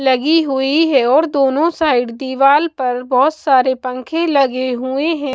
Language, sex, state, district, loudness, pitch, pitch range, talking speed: Hindi, female, Bihar, West Champaran, -15 LUFS, 270 Hz, 255-305 Hz, 155 wpm